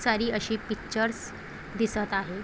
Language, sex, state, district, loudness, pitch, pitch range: Marathi, female, Maharashtra, Chandrapur, -30 LUFS, 220 Hz, 210-225 Hz